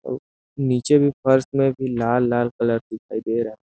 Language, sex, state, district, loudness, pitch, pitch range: Hindi, male, Chhattisgarh, Sarguja, -21 LUFS, 120 Hz, 115-135 Hz